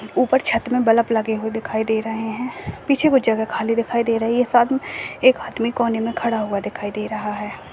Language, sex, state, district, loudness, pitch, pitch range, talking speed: Hindi, female, Goa, North and South Goa, -20 LUFS, 230 Hz, 220-240 Hz, 235 wpm